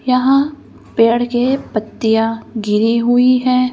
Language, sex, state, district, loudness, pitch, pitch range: Hindi, female, Madhya Pradesh, Bhopal, -15 LUFS, 240 Hz, 225-255 Hz